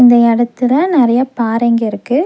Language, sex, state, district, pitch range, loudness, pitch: Tamil, female, Tamil Nadu, Nilgiris, 235-255 Hz, -12 LUFS, 240 Hz